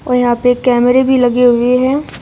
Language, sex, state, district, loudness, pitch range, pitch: Hindi, female, Uttar Pradesh, Shamli, -11 LUFS, 245-255 Hz, 250 Hz